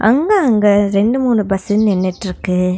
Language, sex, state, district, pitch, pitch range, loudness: Tamil, female, Tamil Nadu, Nilgiris, 205 Hz, 190-230 Hz, -14 LUFS